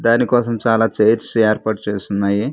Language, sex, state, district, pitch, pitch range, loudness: Telugu, male, Andhra Pradesh, Manyam, 110 Hz, 105-115 Hz, -16 LUFS